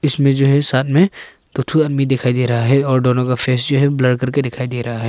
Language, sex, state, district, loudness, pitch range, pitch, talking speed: Hindi, male, Arunachal Pradesh, Papum Pare, -16 LUFS, 125-140 Hz, 130 Hz, 285 wpm